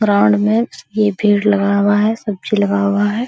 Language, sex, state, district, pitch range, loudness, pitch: Hindi, female, Bihar, Araria, 200-215 Hz, -15 LUFS, 205 Hz